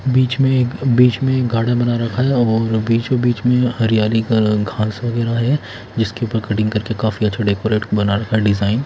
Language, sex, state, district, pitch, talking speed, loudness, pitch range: Hindi, male, Odisha, Khordha, 115 Hz, 175 wpm, -17 LUFS, 110-125 Hz